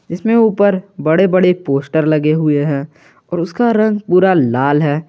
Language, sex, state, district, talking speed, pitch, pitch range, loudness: Hindi, male, Jharkhand, Garhwa, 165 wpm, 170 Hz, 150-190 Hz, -14 LUFS